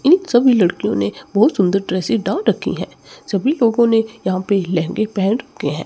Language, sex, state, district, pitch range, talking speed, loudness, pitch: Hindi, male, Chandigarh, Chandigarh, 185-235 Hz, 195 wpm, -17 LUFS, 205 Hz